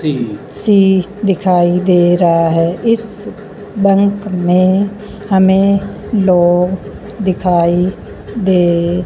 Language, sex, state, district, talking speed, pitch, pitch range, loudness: Hindi, female, Punjab, Fazilka, 80 wpm, 190 Hz, 175-200 Hz, -13 LUFS